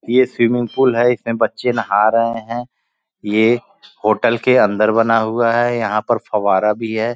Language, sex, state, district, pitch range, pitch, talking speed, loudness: Hindi, male, Uttar Pradesh, Gorakhpur, 110-120 Hz, 115 Hz, 175 wpm, -16 LUFS